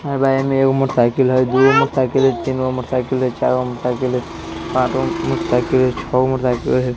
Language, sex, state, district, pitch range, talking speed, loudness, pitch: Bajjika, male, Bihar, Vaishali, 125-135 Hz, 215 wpm, -17 LUFS, 130 Hz